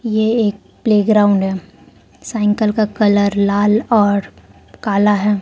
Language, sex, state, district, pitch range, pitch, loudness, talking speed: Hindi, female, Arunachal Pradesh, Lower Dibang Valley, 200-215 Hz, 205 Hz, -15 LUFS, 120 wpm